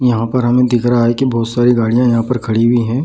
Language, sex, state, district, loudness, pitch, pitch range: Hindi, male, Bihar, Samastipur, -13 LUFS, 120 Hz, 115-125 Hz